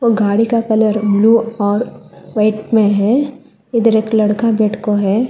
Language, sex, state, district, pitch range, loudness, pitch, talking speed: Hindi, female, Telangana, Hyderabad, 210-230 Hz, -14 LUFS, 220 Hz, 160 wpm